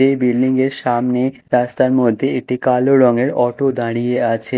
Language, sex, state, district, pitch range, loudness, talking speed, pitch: Bengali, male, Odisha, Khordha, 120-130 Hz, -16 LUFS, 145 wpm, 125 Hz